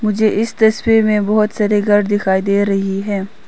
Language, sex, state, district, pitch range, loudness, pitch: Hindi, female, Arunachal Pradesh, Papum Pare, 200-215 Hz, -15 LUFS, 210 Hz